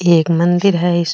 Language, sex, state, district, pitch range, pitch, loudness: Rajasthani, female, Rajasthan, Nagaur, 170-175 Hz, 175 Hz, -14 LUFS